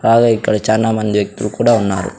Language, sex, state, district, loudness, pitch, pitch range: Telugu, male, Andhra Pradesh, Sri Satya Sai, -15 LUFS, 110 Hz, 105-115 Hz